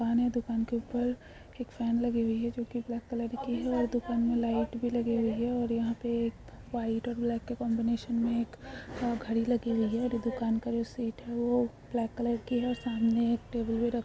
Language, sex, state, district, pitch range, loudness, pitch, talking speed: Hindi, female, Uttarakhand, Tehri Garhwal, 230-240 Hz, -32 LUFS, 235 Hz, 245 wpm